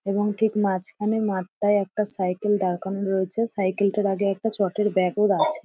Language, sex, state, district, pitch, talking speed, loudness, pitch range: Bengali, female, West Bengal, Dakshin Dinajpur, 200 Hz, 170 wpm, -24 LUFS, 190-210 Hz